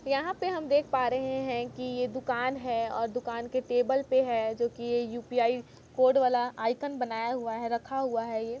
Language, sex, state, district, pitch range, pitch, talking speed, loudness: Hindi, female, Chhattisgarh, Kabirdham, 235-260 Hz, 245 Hz, 215 wpm, -30 LUFS